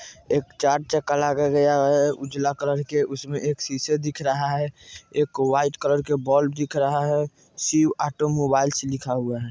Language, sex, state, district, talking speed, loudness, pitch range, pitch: Bajjika, male, Bihar, Vaishali, 185 wpm, -23 LUFS, 140-145 Hz, 145 Hz